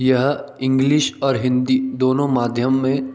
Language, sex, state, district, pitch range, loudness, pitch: Hindi, male, Jharkhand, Jamtara, 130-135 Hz, -18 LUFS, 130 Hz